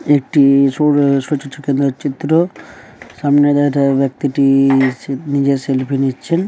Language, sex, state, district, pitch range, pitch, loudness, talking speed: Bengali, male, West Bengal, Dakshin Dinajpur, 135-145 Hz, 140 Hz, -15 LUFS, 75 wpm